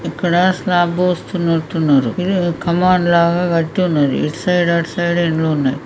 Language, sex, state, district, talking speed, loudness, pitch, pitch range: Telugu, female, Telangana, Karimnagar, 155 wpm, -16 LUFS, 170 Hz, 160-180 Hz